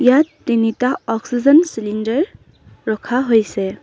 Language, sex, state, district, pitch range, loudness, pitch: Assamese, female, Assam, Sonitpur, 220-265 Hz, -17 LUFS, 240 Hz